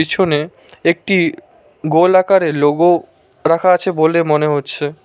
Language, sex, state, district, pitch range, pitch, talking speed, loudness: Bengali, male, West Bengal, Cooch Behar, 150-180 Hz, 165 Hz, 105 wpm, -14 LUFS